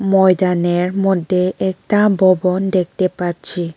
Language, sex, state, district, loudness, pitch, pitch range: Bengali, female, Tripura, West Tripura, -16 LUFS, 185 Hz, 180-190 Hz